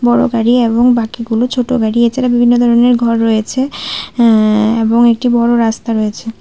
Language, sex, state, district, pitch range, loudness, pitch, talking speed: Bengali, female, Tripura, West Tripura, 225-245 Hz, -12 LUFS, 235 Hz, 160 wpm